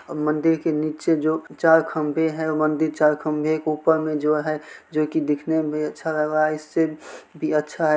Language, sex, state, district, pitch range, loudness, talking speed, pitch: Maithili, male, Bihar, Supaul, 150-160 Hz, -22 LUFS, 205 wpm, 155 Hz